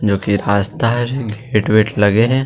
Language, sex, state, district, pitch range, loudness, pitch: Chhattisgarhi, male, Chhattisgarh, Sarguja, 105-120 Hz, -16 LUFS, 110 Hz